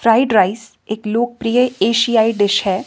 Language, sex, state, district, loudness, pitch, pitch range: Hindi, female, Himachal Pradesh, Shimla, -16 LUFS, 225 Hz, 210-235 Hz